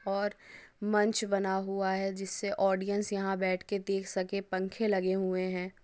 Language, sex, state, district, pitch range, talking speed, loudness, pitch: Hindi, female, Chhattisgarh, Bastar, 190-200 Hz, 165 wpm, -32 LUFS, 195 Hz